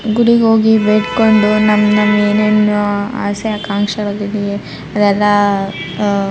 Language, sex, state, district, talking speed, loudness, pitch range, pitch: Kannada, female, Karnataka, Raichur, 115 wpm, -13 LUFS, 205-215 Hz, 210 Hz